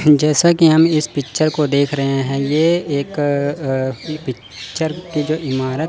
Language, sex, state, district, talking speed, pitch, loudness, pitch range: Hindi, male, Chandigarh, Chandigarh, 175 wpm, 145 Hz, -17 LUFS, 135-155 Hz